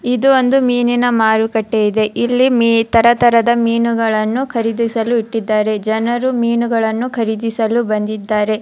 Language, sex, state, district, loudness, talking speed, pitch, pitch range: Kannada, female, Karnataka, Dharwad, -15 LUFS, 105 wpm, 230 Hz, 220-240 Hz